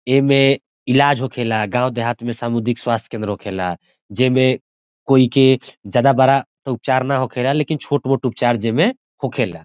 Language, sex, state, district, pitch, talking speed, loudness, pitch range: Bhojpuri, male, Bihar, Saran, 130 Hz, 145 wpm, -18 LUFS, 120-135 Hz